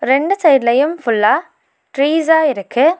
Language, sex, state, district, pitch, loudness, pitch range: Tamil, female, Tamil Nadu, Nilgiris, 285 Hz, -14 LUFS, 260-320 Hz